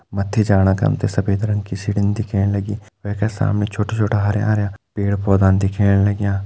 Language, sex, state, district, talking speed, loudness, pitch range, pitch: Hindi, male, Uttarakhand, Uttarkashi, 175 wpm, -19 LUFS, 100-105 Hz, 100 Hz